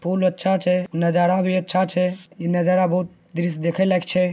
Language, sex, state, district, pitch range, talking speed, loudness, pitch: Angika, male, Bihar, Begusarai, 175-185 Hz, 195 wpm, -21 LUFS, 180 Hz